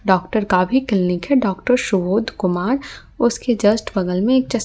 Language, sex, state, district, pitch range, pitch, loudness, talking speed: Hindi, female, Delhi, New Delhi, 190-245 Hz, 210 Hz, -18 LUFS, 165 wpm